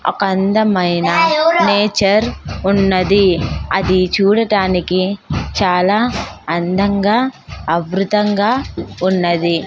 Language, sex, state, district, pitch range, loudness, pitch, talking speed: Telugu, female, Andhra Pradesh, Sri Satya Sai, 185-210 Hz, -15 LUFS, 195 Hz, 60 wpm